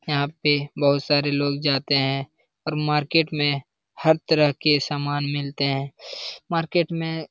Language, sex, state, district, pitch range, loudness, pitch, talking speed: Hindi, male, Bihar, Lakhisarai, 140-155 Hz, -23 LUFS, 145 Hz, 155 wpm